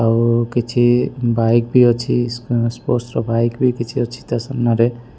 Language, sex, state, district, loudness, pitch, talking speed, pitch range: Odia, male, Odisha, Malkangiri, -17 LUFS, 120 Hz, 175 wpm, 115-120 Hz